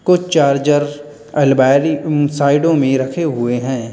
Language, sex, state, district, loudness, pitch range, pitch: Hindi, male, Uttar Pradesh, Lalitpur, -15 LUFS, 135-150 Hz, 145 Hz